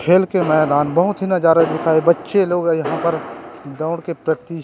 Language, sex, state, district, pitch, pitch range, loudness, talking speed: Chhattisgarhi, male, Chhattisgarh, Rajnandgaon, 165 Hz, 160-175 Hz, -17 LUFS, 180 wpm